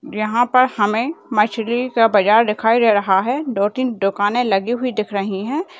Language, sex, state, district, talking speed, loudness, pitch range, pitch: Hindi, female, Rajasthan, Nagaur, 185 wpm, -17 LUFS, 205-250 Hz, 225 Hz